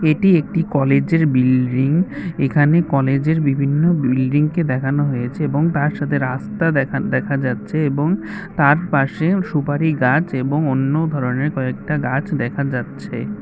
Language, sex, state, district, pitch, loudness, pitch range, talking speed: Bengali, male, Tripura, West Tripura, 145 Hz, -18 LUFS, 135-160 Hz, 145 wpm